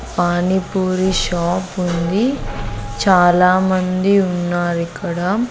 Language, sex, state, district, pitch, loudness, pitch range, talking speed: Telugu, female, Andhra Pradesh, Sri Satya Sai, 185 Hz, -17 LUFS, 175-190 Hz, 55 wpm